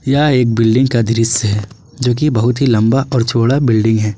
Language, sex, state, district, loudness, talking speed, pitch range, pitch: Hindi, male, Jharkhand, Garhwa, -13 LUFS, 200 wpm, 115-130 Hz, 120 Hz